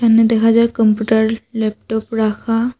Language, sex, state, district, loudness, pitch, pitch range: Bengali, female, Assam, Hailakandi, -16 LUFS, 225 Hz, 220-230 Hz